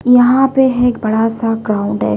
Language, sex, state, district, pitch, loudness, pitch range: Hindi, female, Bihar, Patna, 230 Hz, -13 LUFS, 215-250 Hz